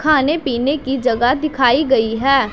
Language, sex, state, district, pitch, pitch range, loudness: Hindi, female, Punjab, Pathankot, 270 Hz, 245-295 Hz, -16 LUFS